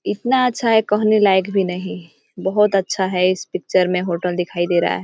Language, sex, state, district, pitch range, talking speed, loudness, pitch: Hindi, female, Bihar, East Champaran, 180-210 Hz, 215 wpm, -18 LUFS, 190 Hz